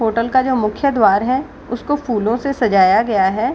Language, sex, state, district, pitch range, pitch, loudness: Hindi, female, Bihar, Gaya, 215-260 Hz, 230 Hz, -16 LUFS